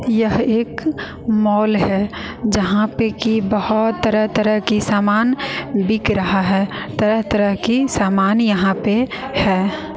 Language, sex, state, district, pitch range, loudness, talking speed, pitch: Hindi, female, Bihar, West Champaran, 205-225 Hz, -17 LUFS, 130 wpm, 215 Hz